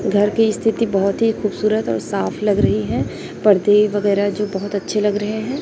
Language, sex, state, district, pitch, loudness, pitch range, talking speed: Hindi, female, Chhattisgarh, Raipur, 210 Hz, -18 LUFS, 200-215 Hz, 205 wpm